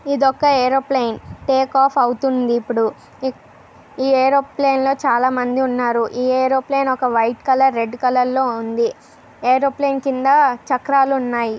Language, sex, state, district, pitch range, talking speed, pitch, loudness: Telugu, female, Andhra Pradesh, Krishna, 245-270 Hz, 125 wpm, 260 Hz, -17 LUFS